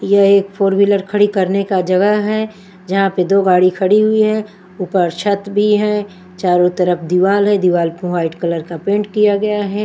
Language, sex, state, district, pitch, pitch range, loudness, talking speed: Hindi, female, Bihar, Patna, 195 Hz, 180-205 Hz, -15 LUFS, 200 wpm